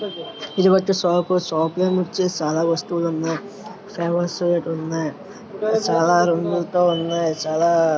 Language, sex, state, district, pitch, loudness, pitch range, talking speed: Telugu, male, Andhra Pradesh, Srikakulam, 175 Hz, -20 LUFS, 165-190 Hz, 120 wpm